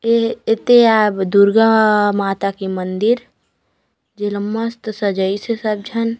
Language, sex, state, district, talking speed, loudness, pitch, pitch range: Chhattisgarhi, female, Chhattisgarh, Raigarh, 135 wpm, -16 LUFS, 215 Hz, 200-230 Hz